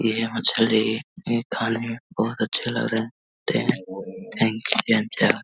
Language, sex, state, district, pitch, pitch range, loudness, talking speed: Hindi, male, Bihar, Vaishali, 115 Hz, 110-120 Hz, -22 LUFS, 155 wpm